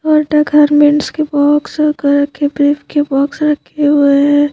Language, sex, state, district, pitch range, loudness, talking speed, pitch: Hindi, female, Madhya Pradesh, Bhopal, 285-300 Hz, -12 LUFS, 145 wpm, 290 Hz